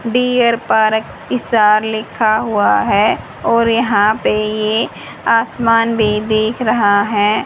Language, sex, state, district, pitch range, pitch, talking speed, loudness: Hindi, female, Haryana, Jhajjar, 215-230 Hz, 220 Hz, 120 wpm, -14 LUFS